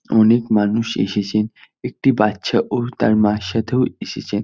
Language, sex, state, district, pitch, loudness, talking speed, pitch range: Bengali, male, West Bengal, North 24 Parganas, 110 Hz, -18 LUFS, 135 wpm, 105-115 Hz